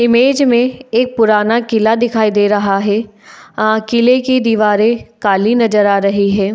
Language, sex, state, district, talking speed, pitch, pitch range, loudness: Hindi, female, Uttar Pradesh, Jalaun, 165 wpm, 220 Hz, 210-240 Hz, -13 LUFS